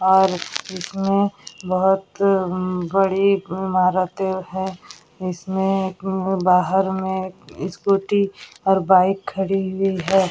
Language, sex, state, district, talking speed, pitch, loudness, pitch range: Hindi, female, Bihar, Vaishali, 85 wpm, 190 Hz, -20 LUFS, 185-195 Hz